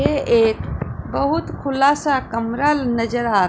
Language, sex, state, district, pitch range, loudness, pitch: Hindi, female, Punjab, Pathankot, 230-280 Hz, -19 LUFS, 240 Hz